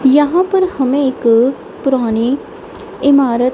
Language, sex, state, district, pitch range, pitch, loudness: Hindi, female, Punjab, Kapurthala, 250-285 Hz, 265 Hz, -14 LUFS